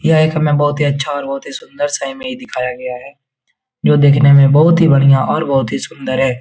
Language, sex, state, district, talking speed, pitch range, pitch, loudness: Hindi, male, Bihar, Jahanabad, 255 wpm, 135-155 Hz, 140 Hz, -13 LUFS